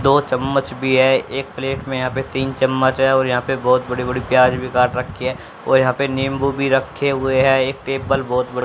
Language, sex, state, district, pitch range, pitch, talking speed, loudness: Hindi, female, Haryana, Jhajjar, 130-135 Hz, 130 Hz, 250 wpm, -18 LUFS